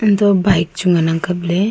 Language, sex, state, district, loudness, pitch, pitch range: Wancho, female, Arunachal Pradesh, Longding, -15 LUFS, 180 Hz, 170-200 Hz